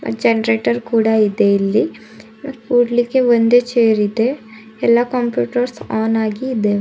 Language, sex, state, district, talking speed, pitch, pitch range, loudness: Kannada, female, Karnataka, Bidar, 115 wpm, 220 Hz, 210-240 Hz, -16 LUFS